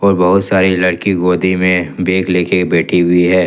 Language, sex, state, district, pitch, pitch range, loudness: Hindi, male, Jharkhand, Ranchi, 90 Hz, 90-95 Hz, -13 LUFS